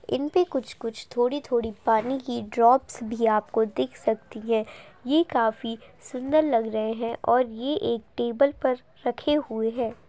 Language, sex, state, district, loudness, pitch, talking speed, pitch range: Hindi, female, Uttar Pradesh, Etah, -25 LUFS, 235 Hz, 170 wpm, 225-265 Hz